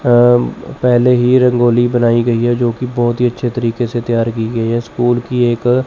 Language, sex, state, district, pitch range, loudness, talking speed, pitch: Hindi, male, Chandigarh, Chandigarh, 120-125 Hz, -14 LUFS, 215 wpm, 120 Hz